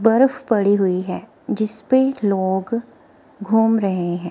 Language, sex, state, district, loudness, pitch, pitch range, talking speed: Hindi, female, Himachal Pradesh, Shimla, -19 LUFS, 215 Hz, 190-240 Hz, 125 wpm